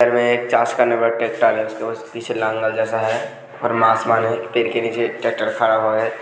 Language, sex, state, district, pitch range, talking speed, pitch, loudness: Hindi, male, Uttar Pradesh, Hamirpur, 110-115 Hz, 115 wpm, 115 Hz, -19 LUFS